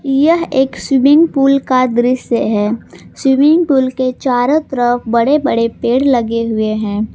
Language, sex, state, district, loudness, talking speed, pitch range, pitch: Hindi, female, Jharkhand, Palamu, -13 LUFS, 150 wpm, 235-275 Hz, 255 Hz